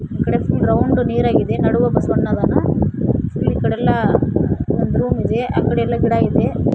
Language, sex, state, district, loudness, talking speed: Kannada, female, Karnataka, Koppal, -17 LUFS, 125 wpm